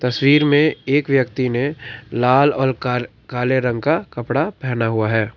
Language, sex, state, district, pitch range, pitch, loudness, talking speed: Hindi, male, Karnataka, Bangalore, 120-140 Hz, 130 Hz, -18 LUFS, 165 wpm